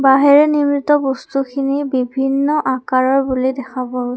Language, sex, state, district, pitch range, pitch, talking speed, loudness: Assamese, female, Assam, Kamrup Metropolitan, 260-285 Hz, 270 Hz, 130 wpm, -16 LUFS